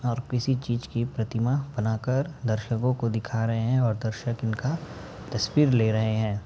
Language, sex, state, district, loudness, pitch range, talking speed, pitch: Hindi, male, Uttar Pradesh, Ghazipur, -27 LUFS, 110-125 Hz, 165 wpm, 115 Hz